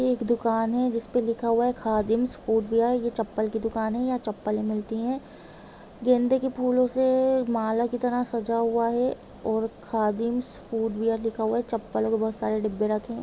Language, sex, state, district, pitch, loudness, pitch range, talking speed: Hindi, female, Jharkhand, Jamtara, 230 Hz, -26 LUFS, 220-245 Hz, 205 wpm